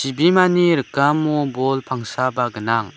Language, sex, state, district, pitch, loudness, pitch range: Garo, male, Meghalaya, West Garo Hills, 135 Hz, -18 LUFS, 125-155 Hz